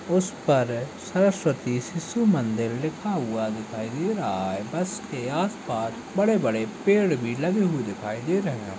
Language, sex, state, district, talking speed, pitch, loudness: Hindi, male, Chhattisgarh, Kabirdham, 155 wpm, 150 Hz, -26 LUFS